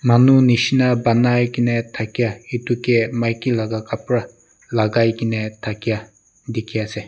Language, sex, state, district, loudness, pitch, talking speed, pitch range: Nagamese, male, Nagaland, Dimapur, -19 LUFS, 115 Hz, 125 wpm, 110-120 Hz